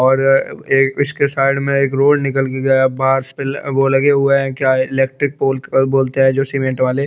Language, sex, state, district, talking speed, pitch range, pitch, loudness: Hindi, male, Chandigarh, Chandigarh, 210 wpm, 135-140 Hz, 135 Hz, -15 LUFS